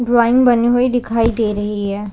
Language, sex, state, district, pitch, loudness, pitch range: Hindi, female, Chhattisgarh, Bilaspur, 235 Hz, -15 LUFS, 210-245 Hz